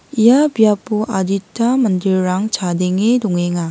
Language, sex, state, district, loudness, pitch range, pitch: Garo, female, Meghalaya, West Garo Hills, -16 LUFS, 185-230 Hz, 195 Hz